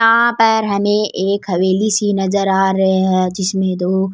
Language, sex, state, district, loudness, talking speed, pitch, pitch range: Rajasthani, female, Rajasthan, Churu, -15 LUFS, 190 wpm, 195 Hz, 190-205 Hz